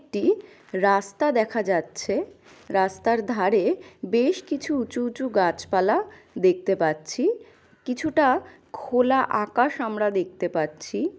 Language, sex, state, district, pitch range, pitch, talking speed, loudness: Bengali, female, West Bengal, Malda, 200-320 Hz, 245 Hz, 105 wpm, -24 LUFS